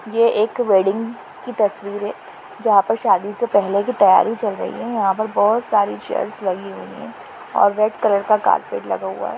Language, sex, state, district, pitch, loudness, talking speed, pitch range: Hindi, female, Maharashtra, Nagpur, 215 Hz, -18 LUFS, 200 wpm, 200-230 Hz